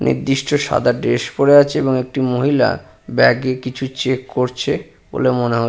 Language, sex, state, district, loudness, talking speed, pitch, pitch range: Bengali, male, West Bengal, Purulia, -17 LUFS, 170 wpm, 130 Hz, 125-140 Hz